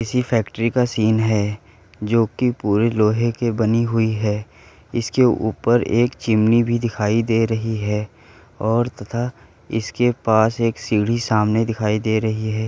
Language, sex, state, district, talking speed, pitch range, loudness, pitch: Hindi, male, Uttar Pradesh, Muzaffarnagar, 155 wpm, 110-115 Hz, -19 LUFS, 110 Hz